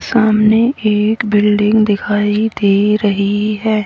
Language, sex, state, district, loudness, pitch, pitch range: Hindi, female, Haryana, Rohtak, -13 LUFS, 210 Hz, 205-220 Hz